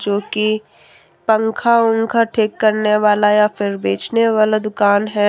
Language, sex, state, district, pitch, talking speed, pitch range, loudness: Hindi, female, Jharkhand, Deoghar, 215 Hz, 150 wpm, 210-220 Hz, -16 LUFS